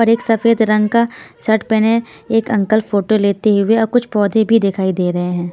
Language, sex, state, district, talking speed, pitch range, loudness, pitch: Hindi, female, Punjab, Pathankot, 230 wpm, 200-230 Hz, -15 LUFS, 220 Hz